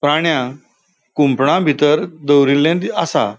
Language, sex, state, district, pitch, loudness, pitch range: Konkani, male, Goa, North and South Goa, 145 Hz, -15 LUFS, 140-160 Hz